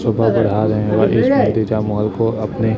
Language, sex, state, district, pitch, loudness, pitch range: Hindi, male, Chhattisgarh, Raipur, 110 Hz, -16 LUFS, 105-110 Hz